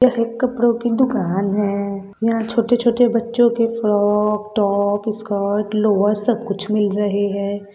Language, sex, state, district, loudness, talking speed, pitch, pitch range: Hindi, female, Bihar, Gopalganj, -18 LUFS, 145 wpm, 210 Hz, 200-235 Hz